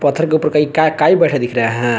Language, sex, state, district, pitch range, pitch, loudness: Hindi, male, Jharkhand, Garhwa, 120-155 Hz, 150 Hz, -14 LUFS